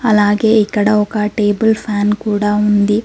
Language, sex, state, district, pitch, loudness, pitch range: Telugu, female, Telangana, Mahabubabad, 210 Hz, -14 LUFS, 205-215 Hz